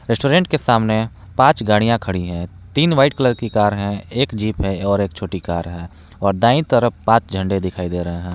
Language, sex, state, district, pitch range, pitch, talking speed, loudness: Hindi, male, Jharkhand, Palamu, 95-120 Hz, 105 Hz, 215 wpm, -18 LUFS